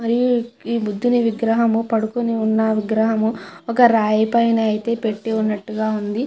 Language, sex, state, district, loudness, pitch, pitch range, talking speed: Telugu, female, Andhra Pradesh, Chittoor, -19 LUFS, 225 Hz, 220-235 Hz, 155 wpm